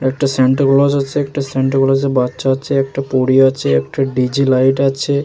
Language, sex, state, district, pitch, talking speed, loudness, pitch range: Bengali, male, West Bengal, Jalpaiguri, 135 Hz, 160 wpm, -15 LUFS, 130-135 Hz